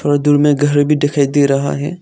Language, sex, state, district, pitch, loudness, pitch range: Hindi, male, Arunachal Pradesh, Longding, 145 Hz, -14 LUFS, 140-145 Hz